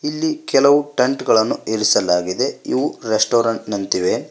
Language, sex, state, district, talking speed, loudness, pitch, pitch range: Kannada, male, Karnataka, Koppal, 110 wpm, -18 LUFS, 115 Hz, 105-140 Hz